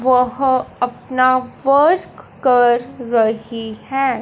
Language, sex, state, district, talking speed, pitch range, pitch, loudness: Hindi, female, Punjab, Fazilka, 85 wpm, 240-265 Hz, 255 Hz, -17 LUFS